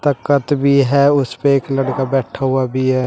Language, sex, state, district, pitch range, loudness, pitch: Hindi, male, Uttar Pradesh, Shamli, 130-140 Hz, -16 LUFS, 135 Hz